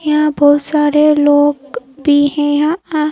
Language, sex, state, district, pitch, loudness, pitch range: Hindi, female, Madhya Pradesh, Bhopal, 295 Hz, -12 LUFS, 290-300 Hz